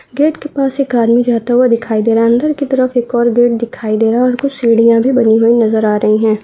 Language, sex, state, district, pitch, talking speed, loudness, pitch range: Hindi, female, Bihar, Saharsa, 235 Hz, 290 wpm, -12 LUFS, 225-255 Hz